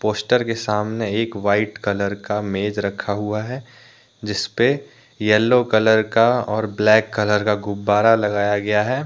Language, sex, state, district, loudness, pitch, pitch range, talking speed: Hindi, male, Jharkhand, Deoghar, -19 LUFS, 105 Hz, 105-115 Hz, 150 wpm